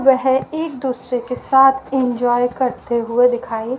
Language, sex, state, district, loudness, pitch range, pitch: Hindi, female, Haryana, Rohtak, -18 LUFS, 245-265 Hz, 250 Hz